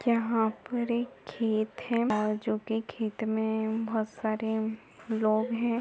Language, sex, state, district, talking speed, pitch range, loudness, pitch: Hindi, female, Bihar, Lakhisarai, 135 wpm, 220-230 Hz, -30 LUFS, 220 Hz